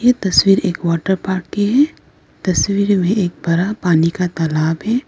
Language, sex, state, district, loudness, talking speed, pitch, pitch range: Hindi, female, Arunachal Pradesh, Lower Dibang Valley, -16 LUFS, 175 wpm, 190 Hz, 170-205 Hz